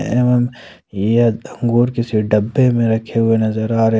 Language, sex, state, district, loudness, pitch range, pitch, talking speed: Hindi, male, Jharkhand, Ranchi, -16 LUFS, 110-120 Hz, 115 Hz, 165 wpm